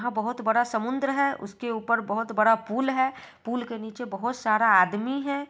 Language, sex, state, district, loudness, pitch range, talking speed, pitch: Hindi, female, Bihar, Sitamarhi, -26 LUFS, 220-260 Hz, 195 wpm, 235 Hz